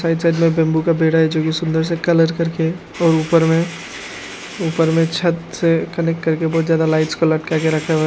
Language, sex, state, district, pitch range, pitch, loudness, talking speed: Hindi, male, Arunachal Pradesh, Lower Dibang Valley, 160-165 Hz, 165 Hz, -17 LUFS, 230 wpm